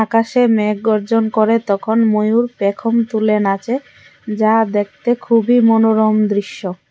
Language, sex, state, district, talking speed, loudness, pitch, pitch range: Bengali, female, Tripura, West Tripura, 120 wpm, -15 LUFS, 220 Hz, 210-230 Hz